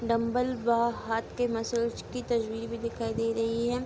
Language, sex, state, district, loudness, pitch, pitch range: Hindi, female, Bihar, Begusarai, -30 LUFS, 235 Hz, 230-240 Hz